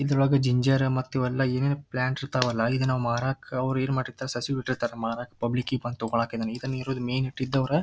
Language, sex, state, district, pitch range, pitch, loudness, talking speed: Kannada, male, Karnataka, Dharwad, 120-135 Hz, 130 Hz, -27 LUFS, 190 wpm